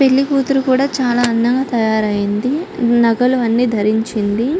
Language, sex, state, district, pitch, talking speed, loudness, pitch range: Telugu, female, Andhra Pradesh, Chittoor, 240 Hz, 105 wpm, -15 LUFS, 225-270 Hz